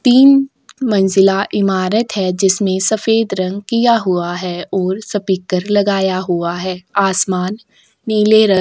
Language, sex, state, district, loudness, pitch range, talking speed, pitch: Hindi, female, Uttar Pradesh, Etah, -15 LUFS, 185-215 Hz, 130 wpm, 195 Hz